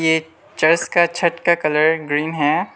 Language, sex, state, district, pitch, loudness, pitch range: Hindi, male, Arunachal Pradesh, Lower Dibang Valley, 160 Hz, -17 LUFS, 155-170 Hz